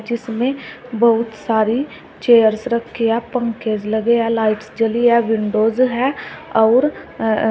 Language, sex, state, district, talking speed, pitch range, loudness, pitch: Hindi, female, Uttar Pradesh, Shamli, 120 wpm, 220-240 Hz, -17 LUFS, 230 Hz